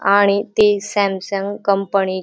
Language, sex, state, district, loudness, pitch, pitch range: Marathi, female, Maharashtra, Dhule, -17 LUFS, 200 Hz, 195-205 Hz